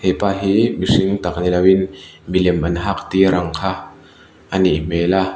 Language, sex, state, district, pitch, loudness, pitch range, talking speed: Mizo, male, Mizoram, Aizawl, 95 Hz, -17 LUFS, 90-95 Hz, 170 wpm